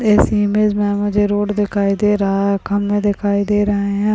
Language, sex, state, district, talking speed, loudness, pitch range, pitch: Hindi, female, Rajasthan, Churu, 200 wpm, -16 LUFS, 200-205 Hz, 205 Hz